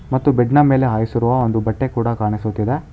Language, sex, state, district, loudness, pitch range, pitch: Kannada, male, Karnataka, Bangalore, -17 LUFS, 110-130 Hz, 120 Hz